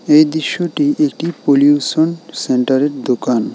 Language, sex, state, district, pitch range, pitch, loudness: Bengali, male, West Bengal, Alipurduar, 140-170 Hz, 155 Hz, -15 LUFS